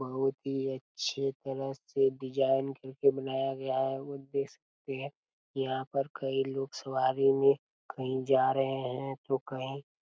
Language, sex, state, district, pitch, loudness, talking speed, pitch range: Hindi, male, Chhattisgarh, Raigarh, 135 Hz, -32 LUFS, 155 wpm, 130-135 Hz